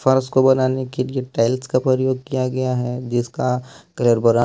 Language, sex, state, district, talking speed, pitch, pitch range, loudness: Hindi, male, Jharkhand, Ranchi, 190 wpm, 130 Hz, 125-130 Hz, -20 LUFS